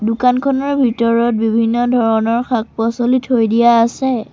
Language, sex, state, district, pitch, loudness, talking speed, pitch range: Assamese, female, Assam, Sonitpur, 235 Hz, -15 LUFS, 110 wpm, 230-250 Hz